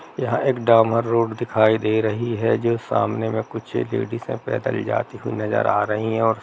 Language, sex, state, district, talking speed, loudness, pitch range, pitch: Hindi, male, Bihar, Sitamarhi, 215 wpm, -21 LUFS, 110-115 Hz, 115 Hz